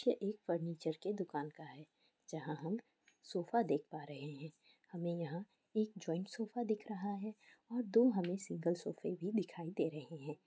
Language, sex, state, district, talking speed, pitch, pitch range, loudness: Hindi, female, Bihar, Sitamarhi, 185 wpm, 185 Hz, 160-215 Hz, -41 LUFS